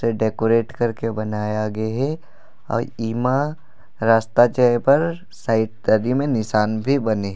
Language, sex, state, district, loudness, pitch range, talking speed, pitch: Chhattisgarhi, male, Chhattisgarh, Raigarh, -20 LUFS, 110-130 Hz, 155 wpm, 115 Hz